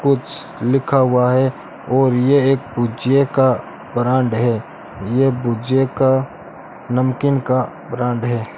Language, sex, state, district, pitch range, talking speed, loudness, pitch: Hindi, male, Rajasthan, Bikaner, 120-135 Hz, 125 wpm, -17 LUFS, 130 Hz